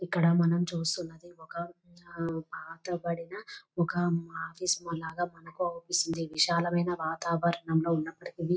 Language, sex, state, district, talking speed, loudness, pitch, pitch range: Telugu, female, Telangana, Nalgonda, 105 wpm, -31 LUFS, 170 Hz, 165-175 Hz